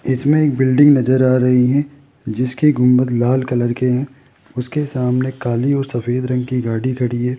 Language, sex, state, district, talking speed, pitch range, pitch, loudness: Hindi, male, Rajasthan, Jaipur, 185 wpm, 125-135 Hz, 130 Hz, -16 LUFS